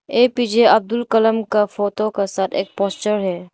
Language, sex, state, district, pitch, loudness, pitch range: Hindi, female, Arunachal Pradesh, Lower Dibang Valley, 210 Hz, -18 LUFS, 195-225 Hz